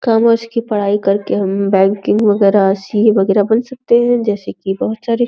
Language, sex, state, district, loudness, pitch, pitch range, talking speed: Hindi, female, Uttar Pradesh, Deoria, -14 LUFS, 210 Hz, 200-230 Hz, 195 wpm